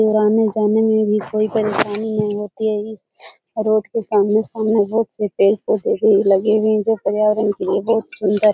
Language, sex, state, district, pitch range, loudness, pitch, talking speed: Hindi, female, Bihar, Jahanabad, 210-220 Hz, -18 LUFS, 215 Hz, 195 wpm